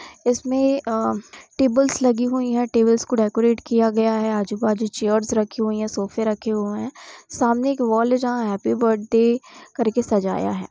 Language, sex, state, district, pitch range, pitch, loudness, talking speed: Hindi, female, Bihar, Sitamarhi, 215-245 Hz, 230 Hz, -21 LUFS, 180 wpm